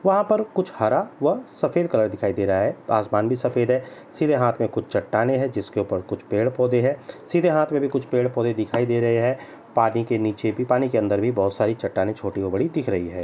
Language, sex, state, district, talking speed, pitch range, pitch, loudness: Hindi, male, Uttar Pradesh, Etah, 250 wpm, 105-130 Hz, 120 Hz, -22 LUFS